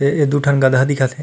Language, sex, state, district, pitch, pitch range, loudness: Chhattisgarhi, male, Chhattisgarh, Rajnandgaon, 140 Hz, 130-145 Hz, -15 LUFS